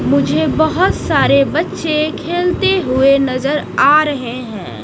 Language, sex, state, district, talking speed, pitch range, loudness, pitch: Hindi, female, Odisha, Nuapada, 125 wpm, 245-315 Hz, -14 LUFS, 275 Hz